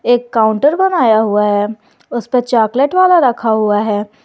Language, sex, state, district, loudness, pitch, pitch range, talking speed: Hindi, male, Jharkhand, Garhwa, -13 LUFS, 230 Hz, 215-250 Hz, 155 wpm